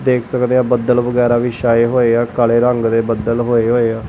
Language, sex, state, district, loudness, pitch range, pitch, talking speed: Punjabi, male, Punjab, Kapurthala, -14 LUFS, 115-125 Hz, 120 Hz, 235 wpm